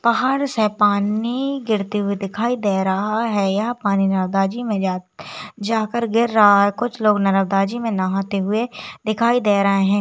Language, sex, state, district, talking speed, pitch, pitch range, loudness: Hindi, female, Chhattisgarh, Raigarh, 180 wpm, 210 Hz, 195-230 Hz, -19 LUFS